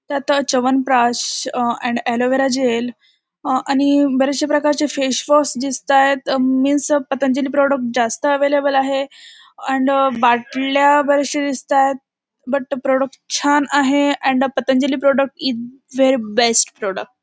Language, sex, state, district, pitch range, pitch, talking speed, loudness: Marathi, female, Maharashtra, Dhule, 260-285 Hz, 275 Hz, 130 wpm, -17 LUFS